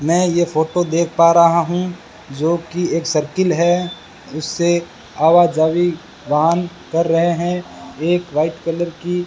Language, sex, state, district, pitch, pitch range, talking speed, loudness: Hindi, male, Rajasthan, Bikaner, 170 Hz, 160-175 Hz, 155 wpm, -17 LUFS